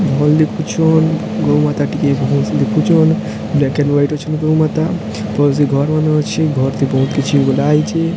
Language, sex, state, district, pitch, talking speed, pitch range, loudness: Odia, male, Odisha, Sambalpur, 145 Hz, 170 wpm, 115-160 Hz, -14 LUFS